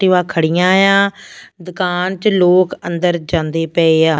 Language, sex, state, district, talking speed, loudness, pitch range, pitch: Punjabi, female, Punjab, Fazilka, 155 wpm, -14 LUFS, 165-185 Hz, 180 Hz